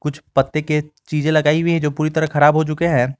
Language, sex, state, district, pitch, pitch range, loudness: Hindi, male, Jharkhand, Garhwa, 155 Hz, 150-155 Hz, -18 LUFS